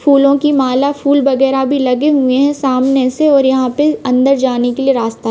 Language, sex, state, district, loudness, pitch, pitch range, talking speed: Hindi, female, Bihar, Vaishali, -12 LUFS, 270 Hz, 255-280 Hz, 215 wpm